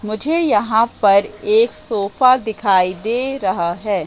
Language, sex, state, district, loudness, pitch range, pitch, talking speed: Hindi, female, Madhya Pradesh, Katni, -16 LUFS, 195-255 Hz, 215 Hz, 135 wpm